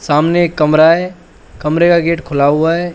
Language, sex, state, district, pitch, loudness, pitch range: Hindi, male, Uttar Pradesh, Shamli, 165 Hz, -12 LUFS, 150-175 Hz